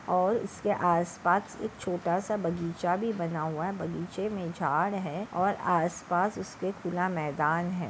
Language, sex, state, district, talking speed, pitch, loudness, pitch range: Hindi, female, Maharashtra, Dhule, 165 wpm, 175 Hz, -30 LUFS, 170-195 Hz